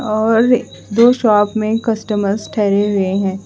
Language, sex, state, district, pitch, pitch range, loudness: Hindi, female, Bihar, Katihar, 215 Hz, 200-225 Hz, -15 LUFS